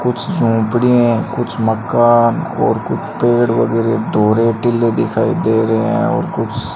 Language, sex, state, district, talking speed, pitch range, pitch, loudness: Hindi, male, Rajasthan, Bikaner, 160 wpm, 110-120 Hz, 115 Hz, -15 LUFS